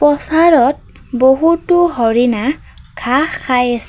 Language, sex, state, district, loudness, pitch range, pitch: Assamese, female, Assam, Kamrup Metropolitan, -13 LUFS, 245-330 Hz, 270 Hz